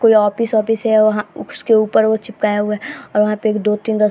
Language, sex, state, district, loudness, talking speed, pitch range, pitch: Hindi, female, Bihar, Vaishali, -16 LUFS, 290 wpm, 210-225 Hz, 215 Hz